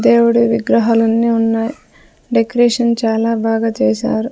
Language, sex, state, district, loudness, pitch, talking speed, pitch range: Telugu, female, Andhra Pradesh, Sri Satya Sai, -14 LUFS, 225 Hz, 110 wpm, 220-230 Hz